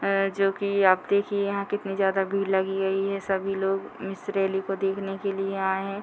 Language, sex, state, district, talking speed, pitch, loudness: Hindi, female, Bihar, Muzaffarpur, 230 wpm, 195 Hz, -26 LUFS